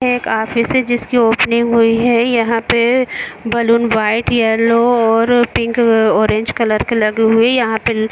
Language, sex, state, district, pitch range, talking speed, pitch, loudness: Hindi, female, Jharkhand, Jamtara, 225-240 Hz, 150 wpm, 230 Hz, -14 LUFS